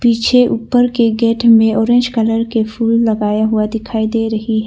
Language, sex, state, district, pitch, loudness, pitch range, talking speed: Hindi, female, Arunachal Pradesh, Longding, 225 Hz, -13 LUFS, 220-235 Hz, 195 wpm